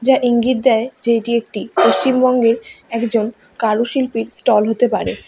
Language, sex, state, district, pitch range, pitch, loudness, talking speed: Bengali, female, West Bengal, Alipurduar, 225-250 Hz, 235 Hz, -16 LUFS, 135 wpm